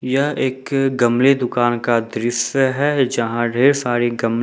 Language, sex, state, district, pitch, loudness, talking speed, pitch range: Hindi, male, Jharkhand, Ranchi, 125 Hz, -18 LUFS, 150 wpm, 120-135 Hz